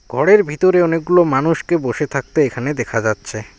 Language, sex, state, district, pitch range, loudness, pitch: Bengali, male, West Bengal, Alipurduar, 120-170 Hz, -16 LUFS, 150 Hz